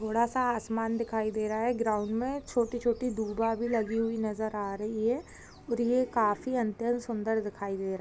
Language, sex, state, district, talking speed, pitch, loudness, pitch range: Hindi, female, Chhattisgarh, Raigarh, 225 wpm, 225 Hz, -31 LUFS, 215-240 Hz